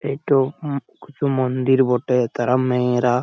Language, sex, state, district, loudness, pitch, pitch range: Bengali, male, West Bengal, Malda, -20 LUFS, 130 Hz, 125-140 Hz